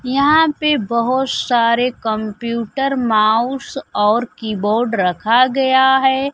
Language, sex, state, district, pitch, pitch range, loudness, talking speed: Hindi, female, Bihar, Kaimur, 245 Hz, 220-270 Hz, -16 LUFS, 105 wpm